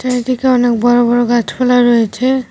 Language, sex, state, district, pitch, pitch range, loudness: Bengali, female, West Bengal, Cooch Behar, 245 Hz, 240-255 Hz, -12 LUFS